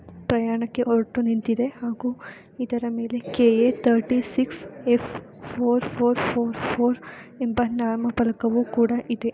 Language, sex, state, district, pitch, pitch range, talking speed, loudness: Kannada, female, Karnataka, Bellary, 235 Hz, 230-245 Hz, 110 wpm, -23 LUFS